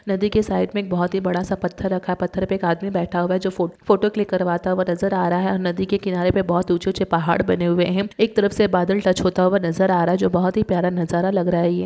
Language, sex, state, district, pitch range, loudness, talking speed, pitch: Hindi, female, West Bengal, Paschim Medinipur, 175-195 Hz, -20 LUFS, 295 wpm, 185 Hz